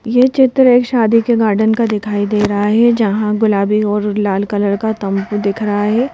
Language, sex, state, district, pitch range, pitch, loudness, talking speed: Hindi, female, Madhya Pradesh, Bhopal, 205-230 Hz, 210 Hz, -14 LUFS, 205 wpm